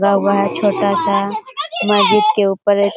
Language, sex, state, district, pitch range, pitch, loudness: Hindi, female, Bihar, Jamui, 200-215 Hz, 205 Hz, -15 LUFS